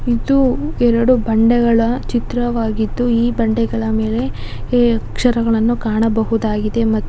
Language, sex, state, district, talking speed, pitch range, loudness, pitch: Kannada, female, Karnataka, Dakshina Kannada, 95 wpm, 225-240 Hz, -16 LUFS, 230 Hz